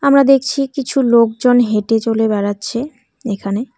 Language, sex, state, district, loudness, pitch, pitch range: Bengali, female, West Bengal, Cooch Behar, -15 LUFS, 240 Hz, 220-270 Hz